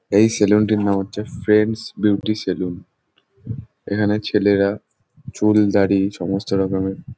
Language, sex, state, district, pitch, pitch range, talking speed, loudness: Bengali, male, West Bengal, Jhargram, 105 Hz, 100-105 Hz, 125 wpm, -19 LUFS